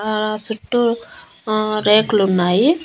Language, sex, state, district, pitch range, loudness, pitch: Telugu, female, Andhra Pradesh, Annamaya, 210-230 Hz, -17 LUFS, 215 Hz